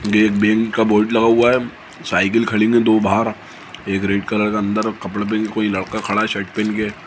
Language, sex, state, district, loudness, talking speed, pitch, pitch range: Hindi, male, Bihar, Samastipur, -17 LUFS, 235 wpm, 105 Hz, 105-110 Hz